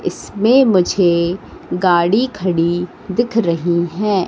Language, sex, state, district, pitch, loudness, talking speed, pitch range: Hindi, female, Madhya Pradesh, Katni, 185 Hz, -16 LUFS, 100 wpm, 175-210 Hz